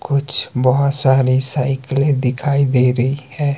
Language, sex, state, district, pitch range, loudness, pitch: Hindi, male, Himachal Pradesh, Shimla, 130-140 Hz, -16 LUFS, 135 Hz